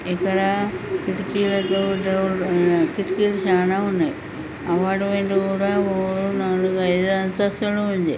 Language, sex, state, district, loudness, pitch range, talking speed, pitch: Telugu, male, Telangana, Nalgonda, -21 LUFS, 185-200 Hz, 80 wpm, 195 Hz